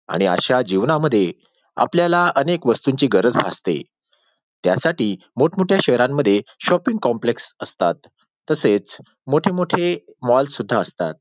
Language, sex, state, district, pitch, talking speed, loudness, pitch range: Marathi, male, Maharashtra, Dhule, 145 Hz, 105 wpm, -19 LUFS, 120-175 Hz